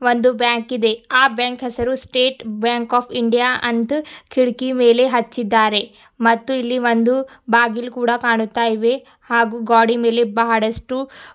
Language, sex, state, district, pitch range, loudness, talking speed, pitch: Kannada, female, Karnataka, Bidar, 230-255 Hz, -17 LUFS, 125 wpm, 240 Hz